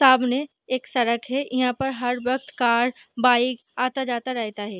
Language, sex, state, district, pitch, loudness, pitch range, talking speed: Hindi, female, Bihar, Saharsa, 250 Hz, -23 LUFS, 240-255 Hz, 175 wpm